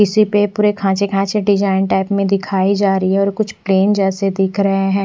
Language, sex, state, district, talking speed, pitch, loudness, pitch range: Hindi, male, Odisha, Nuapada, 225 wpm, 195 Hz, -15 LUFS, 195-205 Hz